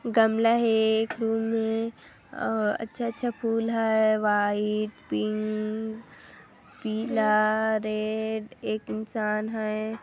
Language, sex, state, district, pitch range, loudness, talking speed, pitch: Hindi, female, Chhattisgarh, Kabirdham, 215-225 Hz, -27 LUFS, 100 wpm, 220 Hz